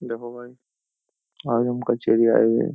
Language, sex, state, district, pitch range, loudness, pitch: Hindi, male, Uttar Pradesh, Jyotiba Phule Nagar, 115-125 Hz, -21 LUFS, 120 Hz